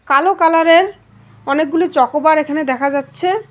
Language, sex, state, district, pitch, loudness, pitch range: Bengali, female, West Bengal, Alipurduar, 315 Hz, -14 LUFS, 280-345 Hz